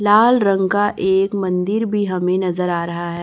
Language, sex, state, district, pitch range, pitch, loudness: Hindi, male, Chhattisgarh, Raipur, 180-205 Hz, 190 Hz, -18 LUFS